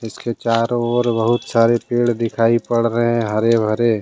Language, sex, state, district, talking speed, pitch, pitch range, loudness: Hindi, male, Jharkhand, Deoghar, 165 wpm, 115 Hz, 115-120 Hz, -17 LUFS